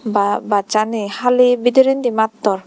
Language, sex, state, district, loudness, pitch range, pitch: Chakma, female, Tripura, Dhalai, -16 LUFS, 205-250 Hz, 220 Hz